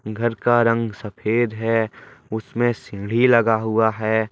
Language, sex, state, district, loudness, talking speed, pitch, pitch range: Hindi, male, Jharkhand, Deoghar, -20 LUFS, 140 wpm, 115 Hz, 110-120 Hz